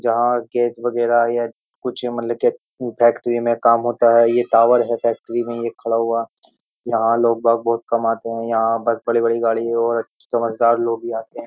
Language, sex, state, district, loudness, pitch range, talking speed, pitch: Hindi, male, Uttar Pradesh, Jyotiba Phule Nagar, -19 LUFS, 115-120 Hz, 195 wpm, 115 Hz